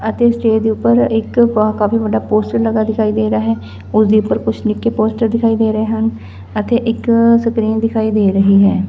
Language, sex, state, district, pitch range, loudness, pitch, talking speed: Punjabi, female, Punjab, Fazilka, 210-225 Hz, -14 LUFS, 220 Hz, 200 wpm